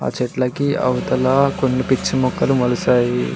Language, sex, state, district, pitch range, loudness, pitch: Telugu, male, Telangana, Mahabubabad, 125-135 Hz, -18 LUFS, 130 Hz